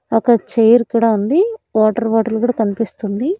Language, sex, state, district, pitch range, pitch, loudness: Telugu, female, Andhra Pradesh, Annamaya, 220-245 Hz, 230 Hz, -15 LUFS